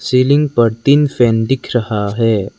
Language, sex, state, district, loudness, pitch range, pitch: Hindi, male, Arunachal Pradesh, Lower Dibang Valley, -14 LUFS, 110-135 Hz, 120 Hz